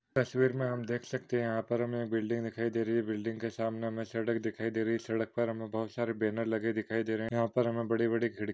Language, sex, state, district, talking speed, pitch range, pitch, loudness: Hindi, male, Maharashtra, Pune, 275 wpm, 115-120 Hz, 115 Hz, -33 LUFS